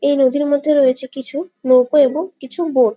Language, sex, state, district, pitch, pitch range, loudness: Bengali, female, West Bengal, Malda, 280 Hz, 260-300 Hz, -16 LUFS